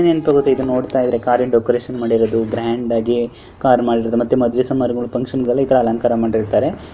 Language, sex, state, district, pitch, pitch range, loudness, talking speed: Kannada, male, Karnataka, Dharwad, 120 Hz, 115-130 Hz, -17 LUFS, 165 wpm